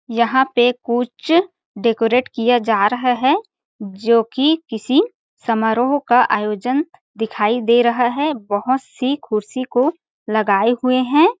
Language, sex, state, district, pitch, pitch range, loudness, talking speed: Hindi, female, Chhattisgarh, Balrampur, 245 Hz, 230-285 Hz, -17 LUFS, 130 wpm